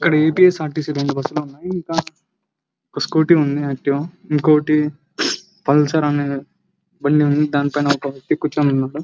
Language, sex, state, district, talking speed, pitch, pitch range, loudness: Telugu, male, Andhra Pradesh, Anantapur, 155 wpm, 150 Hz, 145-165 Hz, -18 LUFS